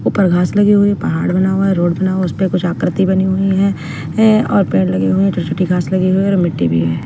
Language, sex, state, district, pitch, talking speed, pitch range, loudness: Hindi, female, Punjab, Fazilka, 185 Hz, 295 wpm, 165-195 Hz, -14 LUFS